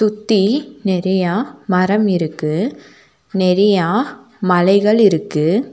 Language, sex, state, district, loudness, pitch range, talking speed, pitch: Tamil, female, Tamil Nadu, Nilgiris, -16 LUFS, 180-215 Hz, 75 wpm, 200 Hz